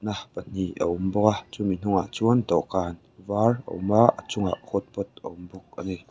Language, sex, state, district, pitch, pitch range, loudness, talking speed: Mizo, male, Mizoram, Aizawl, 100 Hz, 95-105 Hz, -25 LUFS, 215 wpm